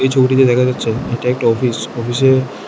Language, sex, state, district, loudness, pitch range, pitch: Bengali, male, Tripura, West Tripura, -15 LUFS, 120-130 Hz, 125 Hz